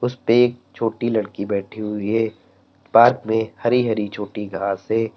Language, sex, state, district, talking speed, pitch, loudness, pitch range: Hindi, male, Uttar Pradesh, Lalitpur, 160 wpm, 110 Hz, -20 LUFS, 105-115 Hz